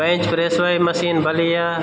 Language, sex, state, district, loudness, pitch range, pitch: Garhwali, male, Uttarakhand, Tehri Garhwal, -18 LUFS, 165-175 Hz, 170 Hz